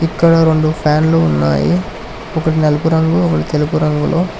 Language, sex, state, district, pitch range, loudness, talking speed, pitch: Telugu, male, Telangana, Hyderabad, 150-165 Hz, -14 LUFS, 135 wpm, 160 Hz